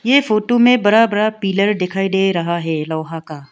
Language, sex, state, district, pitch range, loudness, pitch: Hindi, female, Arunachal Pradesh, Longding, 170-215 Hz, -16 LUFS, 195 Hz